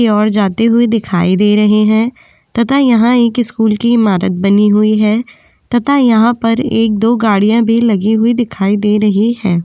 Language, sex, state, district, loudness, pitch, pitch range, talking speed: Hindi, female, Goa, North and South Goa, -11 LUFS, 220 Hz, 210-235 Hz, 180 wpm